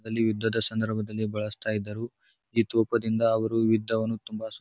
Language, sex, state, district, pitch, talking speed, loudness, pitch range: Kannada, male, Karnataka, Bijapur, 110 Hz, 145 wpm, -27 LUFS, 110-115 Hz